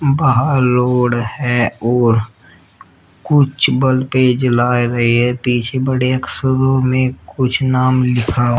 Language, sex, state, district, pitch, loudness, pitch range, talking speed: Hindi, female, Uttar Pradesh, Shamli, 125 Hz, -15 LUFS, 120-130 Hz, 120 wpm